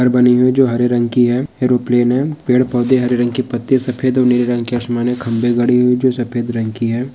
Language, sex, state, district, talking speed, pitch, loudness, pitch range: Hindi, male, Bihar, Jamui, 270 wpm, 125 Hz, -15 LUFS, 120-125 Hz